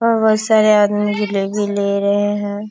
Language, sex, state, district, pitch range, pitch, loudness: Hindi, female, Bihar, Kishanganj, 205-215 Hz, 205 Hz, -16 LUFS